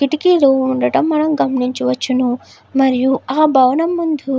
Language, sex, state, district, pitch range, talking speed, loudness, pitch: Telugu, female, Andhra Pradesh, Guntur, 255-310 Hz, 125 wpm, -15 LUFS, 270 Hz